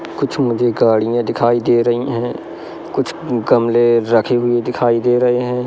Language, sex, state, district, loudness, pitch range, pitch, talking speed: Hindi, male, Madhya Pradesh, Katni, -16 LUFS, 115-125 Hz, 120 Hz, 160 wpm